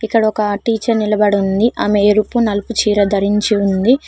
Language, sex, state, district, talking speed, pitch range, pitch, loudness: Telugu, female, Telangana, Mahabubabad, 160 wpm, 205-225 Hz, 210 Hz, -15 LUFS